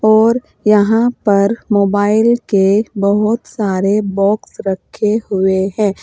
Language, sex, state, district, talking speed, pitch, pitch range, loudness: Hindi, female, Uttar Pradesh, Saharanpur, 110 wpm, 210 Hz, 200-220 Hz, -14 LUFS